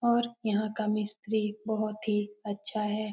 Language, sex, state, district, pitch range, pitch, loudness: Hindi, female, Bihar, Lakhisarai, 210-220 Hz, 215 Hz, -31 LUFS